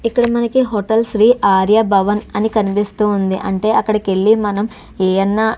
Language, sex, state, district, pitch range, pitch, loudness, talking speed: Telugu, female, Andhra Pradesh, Chittoor, 200-220 Hz, 210 Hz, -15 LUFS, 160 wpm